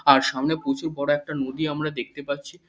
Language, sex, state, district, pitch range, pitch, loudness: Bengali, male, West Bengal, North 24 Parganas, 140-155 Hz, 145 Hz, -25 LUFS